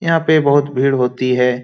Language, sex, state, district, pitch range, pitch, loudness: Hindi, male, Bihar, Lakhisarai, 125-155 Hz, 135 Hz, -15 LUFS